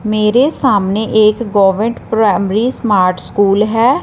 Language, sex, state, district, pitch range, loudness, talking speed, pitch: Hindi, female, Punjab, Fazilka, 200-230 Hz, -13 LUFS, 120 wpm, 215 Hz